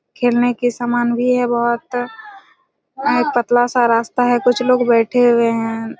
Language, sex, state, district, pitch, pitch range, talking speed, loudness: Hindi, female, Chhattisgarh, Raigarh, 245 Hz, 235-245 Hz, 150 wpm, -16 LUFS